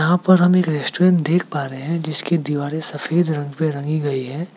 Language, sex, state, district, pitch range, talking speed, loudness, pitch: Hindi, male, Meghalaya, West Garo Hills, 145-175 Hz, 225 wpm, -18 LUFS, 155 Hz